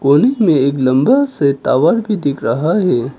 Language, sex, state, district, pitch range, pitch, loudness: Hindi, male, Arunachal Pradesh, Papum Pare, 135-225 Hz, 145 Hz, -14 LUFS